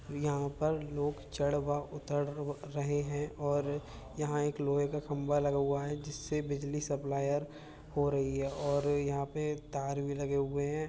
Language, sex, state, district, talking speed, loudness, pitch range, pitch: Hindi, male, Uttar Pradesh, Budaun, 165 wpm, -35 LUFS, 140-145 Hz, 145 Hz